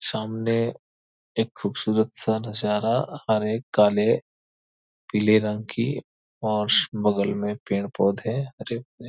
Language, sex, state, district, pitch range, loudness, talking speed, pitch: Hindi, male, Bihar, East Champaran, 105-115 Hz, -24 LUFS, 90 wpm, 110 Hz